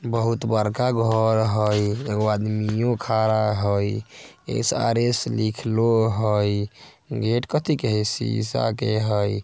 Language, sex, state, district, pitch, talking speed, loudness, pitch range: Maithili, male, Bihar, Vaishali, 110 Hz, 115 wpm, -22 LUFS, 105-115 Hz